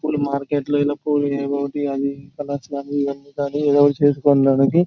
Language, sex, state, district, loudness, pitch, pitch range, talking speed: Telugu, male, Andhra Pradesh, Chittoor, -20 LUFS, 145 Hz, 140-145 Hz, 135 wpm